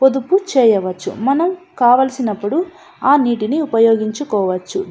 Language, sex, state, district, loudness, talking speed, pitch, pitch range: Telugu, female, Andhra Pradesh, Anantapur, -16 LUFS, 100 wpm, 260 Hz, 215-305 Hz